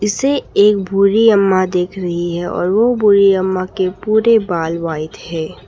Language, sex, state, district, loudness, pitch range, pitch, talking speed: Hindi, female, Arunachal Pradesh, Papum Pare, -15 LUFS, 175-210 Hz, 190 Hz, 170 wpm